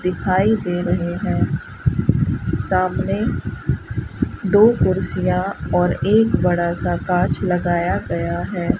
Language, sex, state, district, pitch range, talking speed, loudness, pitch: Hindi, female, Rajasthan, Bikaner, 175-195 Hz, 100 wpm, -19 LUFS, 180 Hz